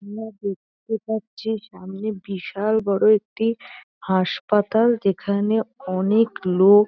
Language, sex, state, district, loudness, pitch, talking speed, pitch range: Bengali, female, West Bengal, North 24 Parganas, -22 LUFS, 210 Hz, 95 wpm, 195-220 Hz